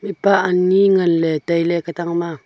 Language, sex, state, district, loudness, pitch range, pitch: Wancho, female, Arunachal Pradesh, Longding, -17 LUFS, 170-190 Hz, 170 Hz